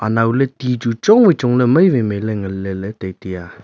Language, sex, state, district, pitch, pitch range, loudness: Wancho, male, Arunachal Pradesh, Longding, 115 Hz, 95-125 Hz, -16 LUFS